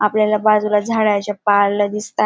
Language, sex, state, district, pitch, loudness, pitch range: Marathi, female, Maharashtra, Dhule, 210 Hz, -16 LUFS, 205-215 Hz